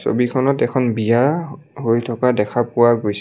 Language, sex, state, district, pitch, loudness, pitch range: Assamese, male, Assam, Kamrup Metropolitan, 120 Hz, -18 LUFS, 115-130 Hz